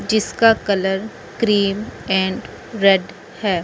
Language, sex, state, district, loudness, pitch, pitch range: Hindi, female, Chandigarh, Chandigarh, -18 LUFS, 200 Hz, 190-220 Hz